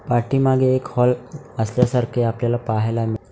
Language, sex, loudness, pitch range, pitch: Marathi, male, -20 LUFS, 115-125 Hz, 120 Hz